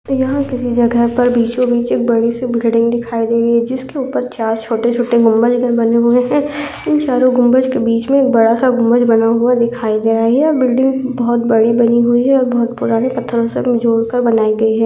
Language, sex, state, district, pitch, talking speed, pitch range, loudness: Hindi, female, Maharashtra, Chandrapur, 240 Hz, 220 wpm, 230-250 Hz, -14 LUFS